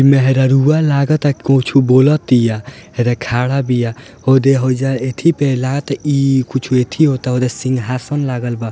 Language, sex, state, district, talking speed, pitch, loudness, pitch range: Bhojpuri, male, Bihar, Gopalganj, 145 wpm, 130 Hz, -14 LUFS, 125-140 Hz